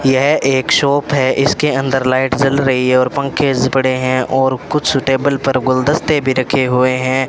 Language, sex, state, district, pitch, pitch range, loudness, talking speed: Hindi, male, Rajasthan, Bikaner, 135 Hz, 130-140 Hz, -14 LUFS, 195 wpm